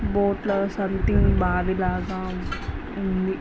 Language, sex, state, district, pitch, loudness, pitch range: Telugu, female, Andhra Pradesh, Visakhapatnam, 190 Hz, -24 LUFS, 185-200 Hz